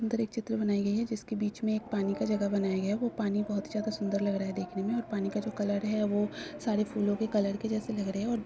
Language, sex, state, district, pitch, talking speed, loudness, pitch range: Hindi, female, Bihar, Kishanganj, 210 Hz, 310 wpm, -32 LUFS, 200-220 Hz